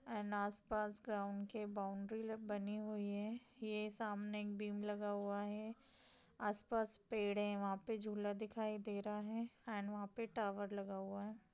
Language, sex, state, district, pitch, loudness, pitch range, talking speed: Hindi, female, Jharkhand, Sahebganj, 210 Hz, -44 LUFS, 205-215 Hz, 175 wpm